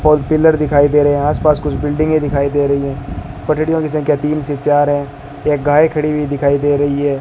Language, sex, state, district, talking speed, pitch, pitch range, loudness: Hindi, male, Rajasthan, Bikaner, 240 wpm, 145 Hz, 145-150 Hz, -14 LUFS